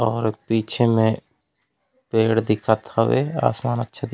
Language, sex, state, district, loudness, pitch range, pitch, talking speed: Chhattisgarhi, male, Chhattisgarh, Raigarh, -21 LUFS, 110-120 Hz, 115 Hz, 145 wpm